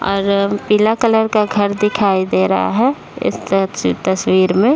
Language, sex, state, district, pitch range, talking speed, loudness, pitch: Hindi, male, Bihar, Jahanabad, 190-215 Hz, 175 wpm, -15 LUFS, 200 Hz